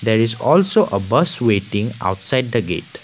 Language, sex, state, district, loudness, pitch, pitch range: English, male, Assam, Kamrup Metropolitan, -16 LUFS, 115 Hz, 100-125 Hz